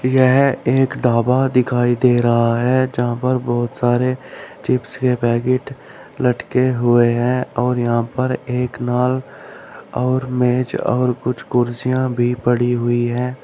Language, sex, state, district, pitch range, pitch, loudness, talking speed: Hindi, male, Uttar Pradesh, Shamli, 120-130 Hz, 125 Hz, -18 LUFS, 140 wpm